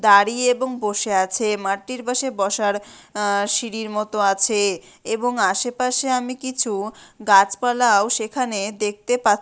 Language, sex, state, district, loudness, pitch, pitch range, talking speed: Bengali, female, West Bengal, Malda, -20 LUFS, 215 Hz, 200-245 Hz, 120 wpm